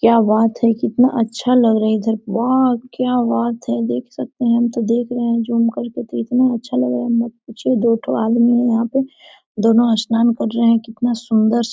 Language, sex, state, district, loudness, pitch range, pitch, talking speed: Hindi, female, Jharkhand, Sahebganj, -17 LUFS, 220-240 Hz, 230 Hz, 220 wpm